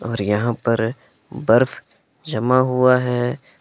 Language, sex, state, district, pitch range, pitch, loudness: Hindi, male, Jharkhand, Palamu, 115-130 Hz, 120 Hz, -19 LUFS